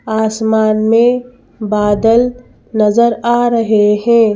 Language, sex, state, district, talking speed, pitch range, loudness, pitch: Hindi, female, Madhya Pradesh, Bhopal, 95 wpm, 215-235 Hz, -12 LUFS, 225 Hz